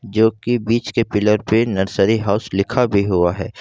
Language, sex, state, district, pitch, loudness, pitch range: Hindi, male, Jharkhand, Ranchi, 105 Hz, -18 LUFS, 100-115 Hz